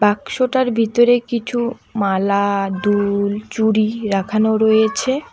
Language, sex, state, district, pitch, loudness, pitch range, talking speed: Bengali, female, West Bengal, Alipurduar, 220 Hz, -17 LUFS, 200-240 Hz, 90 wpm